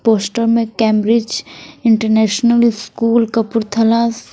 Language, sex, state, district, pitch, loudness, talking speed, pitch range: Hindi, female, Punjab, Kapurthala, 225 Hz, -15 LUFS, 85 wpm, 220-230 Hz